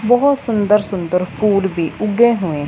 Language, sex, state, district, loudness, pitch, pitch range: Hindi, female, Punjab, Fazilka, -16 LUFS, 205 Hz, 180-225 Hz